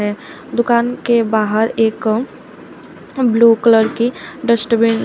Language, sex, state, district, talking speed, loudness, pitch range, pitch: Hindi, female, Uttar Pradesh, Shamli, 105 wpm, -15 LUFS, 220-235 Hz, 230 Hz